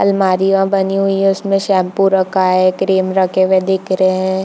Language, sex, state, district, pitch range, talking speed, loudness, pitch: Hindi, female, Chhattisgarh, Bilaspur, 185-195 Hz, 190 wpm, -14 LUFS, 190 Hz